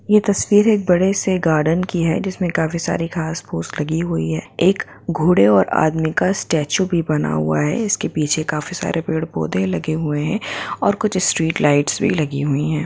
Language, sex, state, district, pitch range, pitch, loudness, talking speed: Hindi, female, Jharkhand, Jamtara, 150-185 Hz, 160 Hz, -18 LUFS, 215 wpm